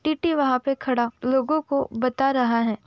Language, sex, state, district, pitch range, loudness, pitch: Hindi, female, Uttar Pradesh, Budaun, 250-280 Hz, -23 LUFS, 265 Hz